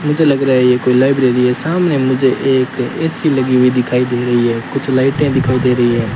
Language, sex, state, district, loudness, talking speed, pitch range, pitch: Hindi, male, Rajasthan, Bikaner, -13 LUFS, 235 wpm, 125-140 Hz, 130 Hz